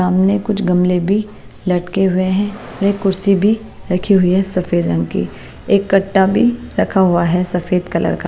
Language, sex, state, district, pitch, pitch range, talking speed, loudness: Hindi, female, Maharashtra, Mumbai Suburban, 190 Hz, 180-200 Hz, 180 wpm, -16 LUFS